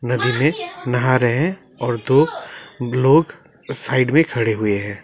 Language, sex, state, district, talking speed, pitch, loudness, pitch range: Hindi, male, West Bengal, Alipurduar, 155 wpm, 125 Hz, -18 LUFS, 120-145 Hz